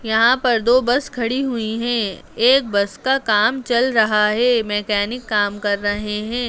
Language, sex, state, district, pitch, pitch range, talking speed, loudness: Hindi, female, Bihar, Jamui, 230 Hz, 210-245 Hz, 175 wpm, -18 LUFS